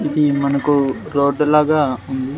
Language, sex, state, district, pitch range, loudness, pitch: Telugu, male, Andhra Pradesh, Sri Satya Sai, 135-150 Hz, -17 LUFS, 140 Hz